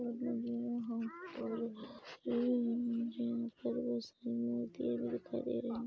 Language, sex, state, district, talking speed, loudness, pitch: Hindi, female, Chhattisgarh, Rajnandgaon, 145 wpm, -39 LUFS, 235 Hz